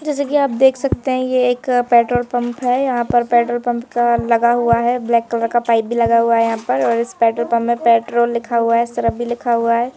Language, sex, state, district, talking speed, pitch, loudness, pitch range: Hindi, female, Madhya Pradesh, Bhopal, 265 wpm, 235 Hz, -16 LUFS, 235-245 Hz